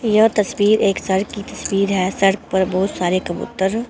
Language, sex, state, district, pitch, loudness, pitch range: Hindi, female, Delhi, New Delhi, 195 Hz, -18 LUFS, 190-210 Hz